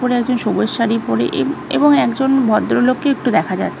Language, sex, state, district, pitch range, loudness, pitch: Bengali, female, West Bengal, North 24 Parganas, 230-270 Hz, -16 LUFS, 250 Hz